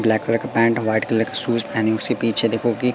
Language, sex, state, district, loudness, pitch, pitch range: Hindi, male, Madhya Pradesh, Katni, -18 LUFS, 115 Hz, 110-115 Hz